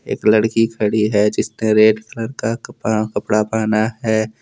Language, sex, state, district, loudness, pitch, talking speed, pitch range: Hindi, male, Jharkhand, Deoghar, -17 LUFS, 110 Hz, 165 wpm, 110-115 Hz